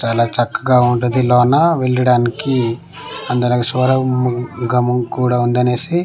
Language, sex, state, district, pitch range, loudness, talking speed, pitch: Telugu, male, Andhra Pradesh, Manyam, 120-130 Hz, -15 LUFS, 80 wpm, 125 Hz